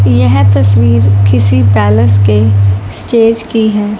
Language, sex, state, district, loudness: Hindi, male, Punjab, Fazilka, -9 LUFS